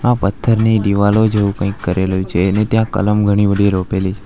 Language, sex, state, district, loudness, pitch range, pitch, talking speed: Gujarati, male, Gujarat, Valsad, -15 LUFS, 95-110 Hz, 100 Hz, 180 wpm